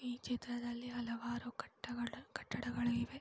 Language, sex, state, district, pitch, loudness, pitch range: Kannada, female, Karnataka, Mysore, 240 Hz, -42 LUFS, 235-245 Hz